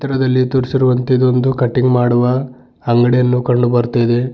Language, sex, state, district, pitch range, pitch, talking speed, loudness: Kannada, male, Karnataka, Bidar, 120-130 Hz, 125 Hz, 110 wpm, -14 LUFS